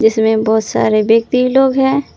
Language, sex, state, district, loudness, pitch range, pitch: Hindi, female, Jharkhand, Palamu, -13 LUFS, 220-265 Hz, 225 Hz